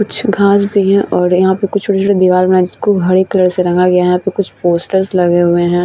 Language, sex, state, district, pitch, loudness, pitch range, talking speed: Hindi, female, Bihar, Vaishali, 185 Hz, -12 LUFS, 180-200 Hz, 235 wpm